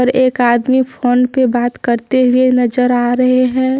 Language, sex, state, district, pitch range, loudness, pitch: Hindi, female, Jharkhand, Deoghar, 245-255 Hz, -13 LUFS, 255 Hz